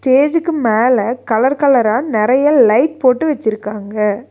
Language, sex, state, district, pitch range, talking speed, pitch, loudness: Tamil, female, Tamil Nadu, Nilgiris, 220-280 Hz, 110 wpm, 255 Hz, -14 LUFS